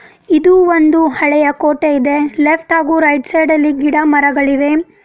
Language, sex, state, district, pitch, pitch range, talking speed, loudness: Kannada, female, Karnataka, Bidar, 305 Hz, 290-320 Hz, 145 wpm, -12 LUFS